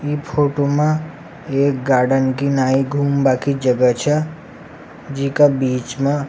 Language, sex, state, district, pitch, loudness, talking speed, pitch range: Rajasthani, male, Rajasthan, Nagaur, 140 Hz, -17 LUFS, 145 wpm, 135-150 Hz